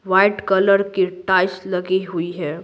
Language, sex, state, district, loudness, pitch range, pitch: Hindi, female, Bihar, Patna, -19 LUFS, 180-195 Hz, 185 Hz